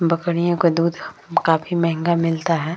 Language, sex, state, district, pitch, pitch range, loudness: Hindi, female, Bihar, Vaishali, 170 Hz, 165-170 Hz, -20 LUFS